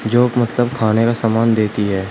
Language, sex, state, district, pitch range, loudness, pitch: Hindi, male, Uttar Pradesh, Shamli, 110-120 Hz, -16 LUFS, 115 Hz